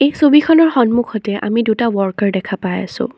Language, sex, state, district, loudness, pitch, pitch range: Assamese, female, Assam, Sonitpur, -15 LUFS, 225 Hz, 200-280 Hz